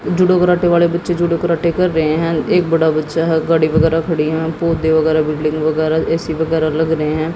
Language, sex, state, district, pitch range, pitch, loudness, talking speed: Hindi, female, Haryana, Jhajjar, 155-170 Hz, 160 Hz, -15 LUFS, 210 wpm